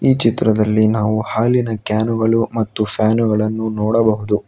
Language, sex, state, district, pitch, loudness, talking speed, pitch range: Kannada, male, Karnataka, Bangalore, 110 Hz, -17 LUFS, 105 wpm, 110-115 Hz